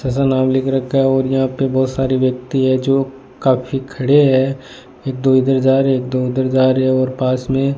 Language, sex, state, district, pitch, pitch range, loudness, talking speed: Hindi, male, Rajasthan, Bikaner, 130 Hz, 130-135 Hz, -16 LUFS, 240 wpm